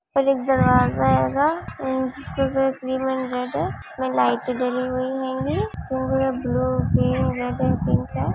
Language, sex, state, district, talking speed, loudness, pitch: Hindi, female, Bihar, Purnia, 150 wpm, -22 LUFS, 255 Hz